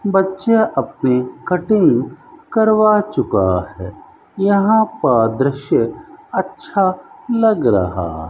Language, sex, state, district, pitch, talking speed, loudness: Hindi, male, Rajasthan, Bikaner, 190 Hz, 95 wpm, -16 LUFS